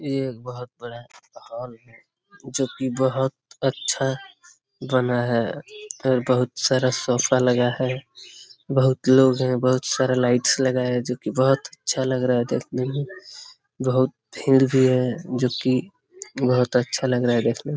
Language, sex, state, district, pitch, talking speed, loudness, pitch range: Hindi, male, Bihar, Jamui, 130 Hz, 160 wpm, -22 LUFS, 125-135 Hz